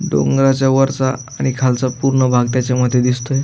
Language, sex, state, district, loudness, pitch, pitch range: Marathi, male, Maharashtra, Aurangabad, -16 LUFS, 130 Hz, 125-135 Hz